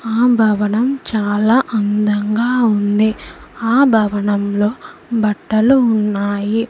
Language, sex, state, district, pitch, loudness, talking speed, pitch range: Telugu, female, Andhra Pradesh, Sri Satya Sai, 215 Hz, -15 LUFS, 90 wpm, 210-235 Hz